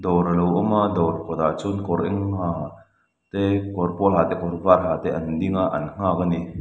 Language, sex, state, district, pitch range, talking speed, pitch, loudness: Mizo, male, Mizoram, Aizawl, 85-100 Hz, 245 wpm, 90 Hz, -22 LUFS